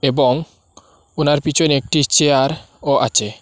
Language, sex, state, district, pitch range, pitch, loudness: Bengali, male, Assam, Hailakandi, 130-150 Hz, 145 Hz, -16 LUFS